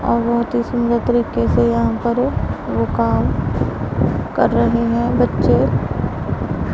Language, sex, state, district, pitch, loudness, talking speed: Hindi, female, Punjab, Pathankot, 235 Hz, -18 LUFS, 125 wpm